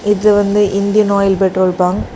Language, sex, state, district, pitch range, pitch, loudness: Tamil, female, Tamil Nadu, Kanyakumari, 190-205 Hz, 200 Hz, -13 LUFS